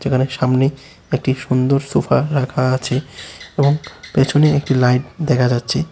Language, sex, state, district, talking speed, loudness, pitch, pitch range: Bengali, male, Tripura, West Tripura, 130 wpm, -17 LUFS, 135 Hz, 130-145 Hz